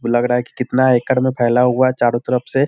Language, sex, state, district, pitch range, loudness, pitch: Hindi, male, Bihar, Sitamarhi, 120-130 Hz, -16 LUFS, 125 Hz